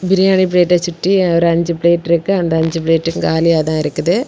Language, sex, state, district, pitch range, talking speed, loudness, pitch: Tamil, female, Tamil Nadu, Kanyakumari, 165-185 Hz, 180 wpm, -14 LUFS, 170 Hz